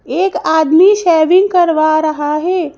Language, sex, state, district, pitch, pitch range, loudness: Hindi, female, Madhya Pradesh, Bhopal, 330 Hz, 310-365 Hz, -11 LUFS